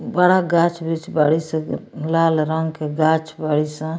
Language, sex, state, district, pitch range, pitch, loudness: Bhojpuri, female, Bihar, Muzaffarpur, 155-165 Hz, 160 Hz, -19 LUFS